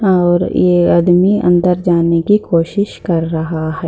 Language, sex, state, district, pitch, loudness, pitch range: Hindi, female, Bihar, Purnia, 175 Hz, -13 LUFS, 165-185 Hz